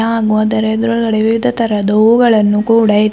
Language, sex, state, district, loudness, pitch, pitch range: Kannada, female, Karnataka, Bidar, -12 LUFS, 220 Hz, 215-230 Hz